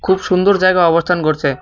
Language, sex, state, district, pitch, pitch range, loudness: Bengali, male, West Bengal, Cooch Behar, 180 Hz, 160-190 Hz, -13 LUFS